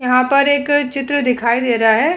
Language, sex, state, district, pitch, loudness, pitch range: Hindi, female, Uttar Pradesh, Hamirpur, 275 Hz, -15 LUFS, 245-285 Hz